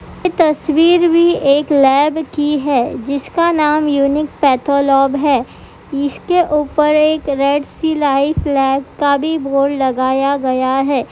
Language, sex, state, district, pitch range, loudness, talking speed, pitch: Hindi, female, Bihar, Madhepura, 275-305 Hz, -14 LUFS, 125 wpm, 285 Hz